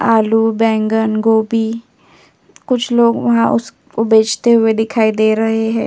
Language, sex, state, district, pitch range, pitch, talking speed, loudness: Hindi, female, Uttar Pradesh, Jyotiba Phule Nagar, 220-230 Hz, 225 Hz, 145 wpm, -14 LUFS